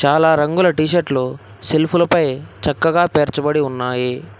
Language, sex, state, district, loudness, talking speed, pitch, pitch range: Telugu, male, Telangana, Hyderabad, -17 LUFS, 125 wpm, 150 Hz, 130-165 Hz